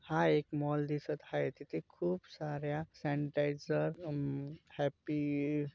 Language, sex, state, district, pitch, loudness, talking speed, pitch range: Marathi, male, Maharashtra, Dhule, 150 Hz, -37 LUFS, 135 wpm, 145-155 Hz